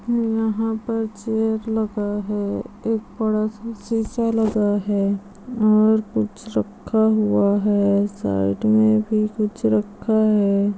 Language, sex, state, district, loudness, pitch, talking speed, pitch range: Hindi, female, Andhra Pradesh, Chittoor, -21 LUFS, 215 Hz, 130 wpm, 200-220 Hz